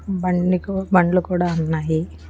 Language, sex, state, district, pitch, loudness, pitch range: Telugu, female, Andhra Pradesh, Annamaya, 180 Hz, -20 LUFS, 160-185 Hz